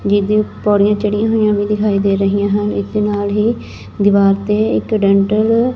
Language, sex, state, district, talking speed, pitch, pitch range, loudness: Punjabi, female, Punjab, Fazilka, 175 wpm, 210 Hz, 200-215 Hz, -15 LUFS